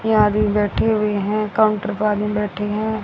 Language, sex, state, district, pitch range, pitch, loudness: Hindi, female, Haryana, Rohtak, 210-215 Hz, 210 Hz, -19 LUFS